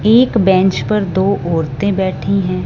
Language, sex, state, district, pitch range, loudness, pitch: Hindi, female, Punjab, Fazilka, 185-200 Hz, -14 LUFS, 190 Hz